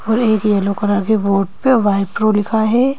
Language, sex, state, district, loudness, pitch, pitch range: Hindi, female, Madhya Pradesh, Bhopal, -15 LUFS, 215 Hz, 200-225 Hz